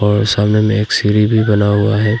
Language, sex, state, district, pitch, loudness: Hindi, male, Arunachal Pradesh, Papum Pare, 105 Hz, -13 LUFS